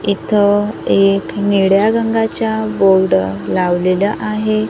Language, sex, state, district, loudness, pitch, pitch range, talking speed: Marathi, female, Maharashtra, Gondia, -14 LUFS, 200 Hz, 190-215 Hz, 90 wpm